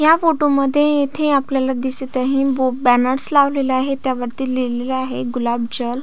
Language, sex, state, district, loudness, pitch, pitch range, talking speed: Marathi, female, Maharashtra, Solapur, -17 LUFS, 265 Hz, 255-275 Hz, 160 wpm